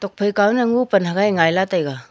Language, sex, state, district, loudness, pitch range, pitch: Wancho, female, Arunachal Pradesh, Longding, -18 LUFS, 180-205 Hz, 200 Hz